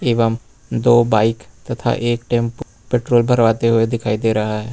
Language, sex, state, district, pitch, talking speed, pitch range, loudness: Hindi, male, Jharkhand, Ranchi, 115 Hz, 165 wpm, 110-120 Hz, -17 LUFS